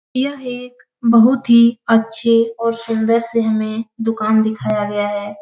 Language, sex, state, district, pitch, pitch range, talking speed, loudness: Hindi, female, Uttar Pradesh, Etah, 230 Hz, 220-235 Hz, 145 wpm, -16 LUFS